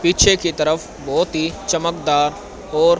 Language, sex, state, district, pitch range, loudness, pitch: Hindi, male, Haryana, Rohtak, 155-175 Hz, -18 LUFS, 170 Hz